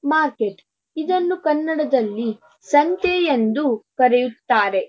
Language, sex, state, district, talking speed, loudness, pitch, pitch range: Kannada, female, Karnataka, Dharwad, 75 wpm, -20 LUFS, 280 Hz, 225-315 Hz